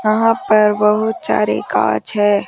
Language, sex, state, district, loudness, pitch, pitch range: Hindi, female, Rajasthan, Jaipur, -15 LUFS, 215 Hz, 210-220 Hz